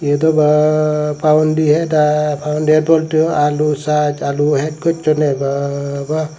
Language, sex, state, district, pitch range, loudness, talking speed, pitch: Chakma, male, Tripura, Dhalai, 150-155 Hz, -15 LUFS, 130 wpm, 150 Hz